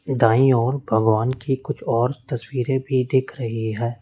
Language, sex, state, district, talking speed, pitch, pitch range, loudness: Hindi, male, Uttar Pradesh, Lalitpur, 165 wpm, 125 Hz, 115-130 Hz, -21 LUFS